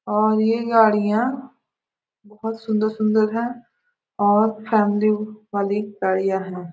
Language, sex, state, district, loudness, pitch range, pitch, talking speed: Hindi, female, Bihar, Gopalganj, -20 LUFS, 205-225 Hz, 215 Hz, 100 wpm